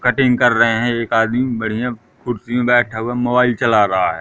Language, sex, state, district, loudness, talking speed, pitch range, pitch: Hindi, male, Madhya Pradesh, Katni, -16 LUFS, 215 wpm, 115-125 Hz, 120 Hz